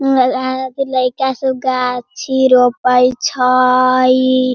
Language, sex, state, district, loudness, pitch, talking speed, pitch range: Hindi, female, Bihar, Sitamarhi, -14 LUFS, 255 Hz, 80 wpm, 255-265 Hz